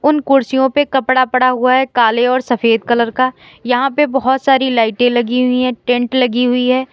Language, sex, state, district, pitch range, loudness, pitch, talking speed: Hindi, female, Uttar Pradesh, Lalitpur, 245-265 Hz, -14 LUFS, 255 Hz, 205 wpm